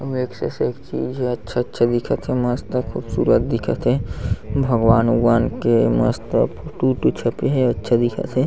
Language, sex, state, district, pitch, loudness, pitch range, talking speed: Chhattisgarhi, male, Chhattisgarh, Sarguja, 120 Hz, -20 LUFS, 115-130 Hz, 170 wpm